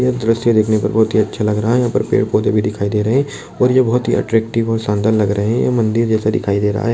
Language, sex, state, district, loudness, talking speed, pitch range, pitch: Hindi, male, Bihar, Jamui, -16 LUFS, 295 wpm, 105-115 Hz, 110 Hz